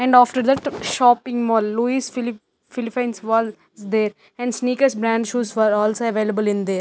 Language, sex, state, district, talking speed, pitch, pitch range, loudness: English, female, Chandigarh, Chandigarh, 175 wpm, 230 Hz, 215-250 Hz, -20 LUFS